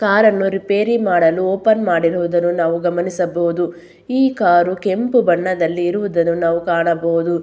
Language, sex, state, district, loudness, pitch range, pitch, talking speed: Kannada, female, Karnataka, Belgaum, -16 LUFS, 170-200 Hz, 175 Hz, 115 wpm